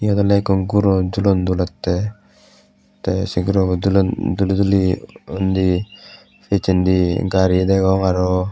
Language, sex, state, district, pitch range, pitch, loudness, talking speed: Chakma, male, Tripura, West Tripura, 90-100 Hz, 95 Hz, -18 LUFS, 120 wpm